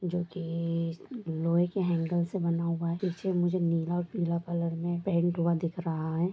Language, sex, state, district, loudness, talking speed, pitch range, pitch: Hindi, female, Jharkhand, Jamtara, -30 LUFS, 200 wpm, 170-175 Hz, 170 Hz